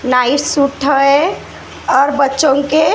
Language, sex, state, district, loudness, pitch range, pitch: Hindi, female, Maharashtra, Gondia, -13 LUFS, 275-290 Hz, 280 Hz